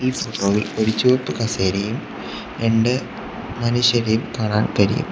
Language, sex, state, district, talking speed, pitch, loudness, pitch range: Malayalam, male, Kerala, Kollam, 105 wpm, 110 Hz, -20 LUFS, 105-120 Hz